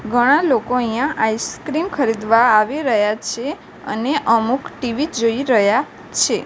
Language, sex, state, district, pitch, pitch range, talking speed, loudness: Gujarati, female, Gujarat, Gandhinagar, 240 Hz, 225-285 Hz, 130 wpm, -18 LUFS